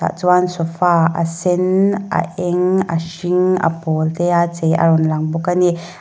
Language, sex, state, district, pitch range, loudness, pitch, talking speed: Mizo, female, Mizoram, Aizawl, 165-180 Hz, -16 LUFS, 175 Hz, 200 wpm